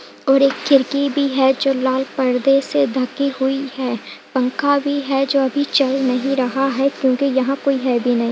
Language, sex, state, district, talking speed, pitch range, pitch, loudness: Hindi, female, Bihar, Purnia, 195 wpm, 260-275 Hz, 270 Hz, -18 LUFS